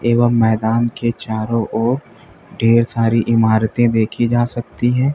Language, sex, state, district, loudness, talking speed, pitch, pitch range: Hindi, male, Uttar Pradesh, Lalitpur, -17 LUFS, 140 wpm, 115 Hz, 110-120 Hz